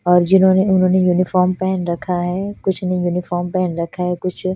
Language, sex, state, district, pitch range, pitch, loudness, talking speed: Hindi, female, Punjab, Fazilka, 180-185 Hz, 180 Hz, -17 LUFS, 185 wpm